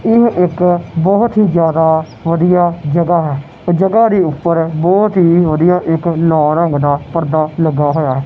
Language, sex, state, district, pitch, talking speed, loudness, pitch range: Punjabi, male, Punjab, Kapurthala, 170 Hz, 150 wpm, -13 LUFS, 160-180 Hz